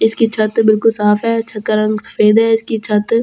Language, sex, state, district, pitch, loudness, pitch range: Hindi, female, Delhi, New Delhi, 220 Hz, -14 LUFS, 215-225 Hz